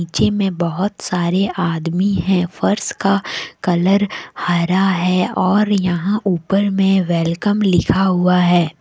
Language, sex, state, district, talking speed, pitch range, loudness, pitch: Hindi, female, Jharkhand, Deoghar, 125 wpm, 175-195 Hz, -17 LUFS, 185 Hz